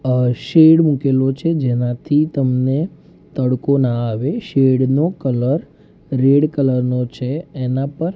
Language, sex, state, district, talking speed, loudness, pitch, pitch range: Gujarati, male, Gujarat, Gandhinagar, 130 wpm, -17 LUFS, 135 Hz, 125-150 Hz